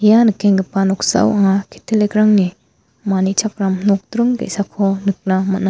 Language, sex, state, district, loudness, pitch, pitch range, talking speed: Garo, female, Meghalaya, West Garo Hills, -16 LUFS, 200 Hz, 195-215 Hz, 105 wpm